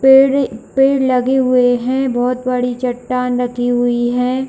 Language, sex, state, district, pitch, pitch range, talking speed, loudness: Hindi, female, Chhattisgarh, Bilaspur, 250 Hz, 245-265 Hz, 160 wpm, -15 LUFS